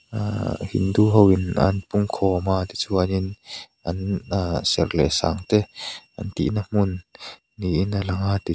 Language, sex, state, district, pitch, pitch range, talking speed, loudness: Mizo, male, Mizoram, Aizawl, 95 Hz, 95-105 Hz, 140 wpm, -22 LUFS